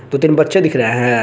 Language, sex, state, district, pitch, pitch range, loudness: Hindi, male, Jharkhand, Garhwa, 140 Hz, 120-155 Hz, -14 LUFS